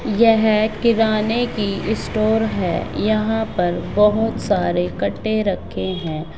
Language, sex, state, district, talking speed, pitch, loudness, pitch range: Hindi, female, Bihar, Begusarai, 115 wpm, 215 Hz, -19 LUFS, 175-220 Hz